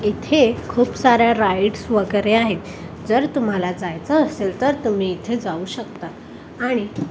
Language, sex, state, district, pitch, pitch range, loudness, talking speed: Marathi, female, Maharashtra, Washim, 220 Hz, 195-245 Hz, -19 LUFS, 135 wpm